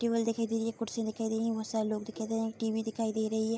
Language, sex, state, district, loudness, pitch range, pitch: Hindi, female, Bihar, Darbhanga, -33 LUFS, 220-230 Hz, 225 Hz